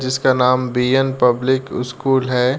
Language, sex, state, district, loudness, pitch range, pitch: Hindi, male, Uttar Pradesh, Deoria, -17 LUFS, 125-130 Hz, 130 Hz